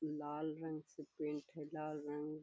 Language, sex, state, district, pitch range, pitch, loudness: Magahi, female, Bihar, Gaya, 150-155 Hz, 155 Hz, -45 LUFS